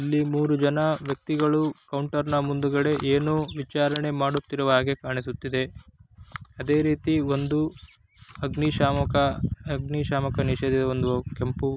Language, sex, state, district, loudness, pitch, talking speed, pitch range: Kannada, male, Karnataka, Chamarajanagar, -25 LUFS, 140 Hz, 95 wpm, 130-150 Hz